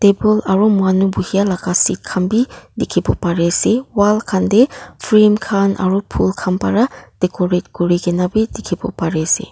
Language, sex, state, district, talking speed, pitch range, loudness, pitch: Nagamese, female, Nagaland, Kohima, 165 wpm, 180-215 Hz, -16 LUFS, 195 Hz